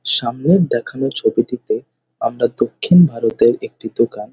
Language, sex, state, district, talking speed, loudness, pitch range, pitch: Bengali, male, West Bengal, North 24 Parganas, 125 wpm, -17 LUFS, 115-175 Hz, 130 Hz